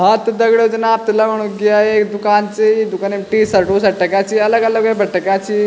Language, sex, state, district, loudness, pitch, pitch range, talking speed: Garhwali, male, Uttarakhand, Tehri Garhwal, -14 LUFS, 210 Hz, 200-220 Hz, 245 wpm